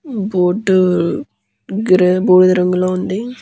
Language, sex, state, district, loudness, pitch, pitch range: Telugu, male, Andhra Pradesh, Guntur, -14 LUFS, 185 Hz, 180-195 Hz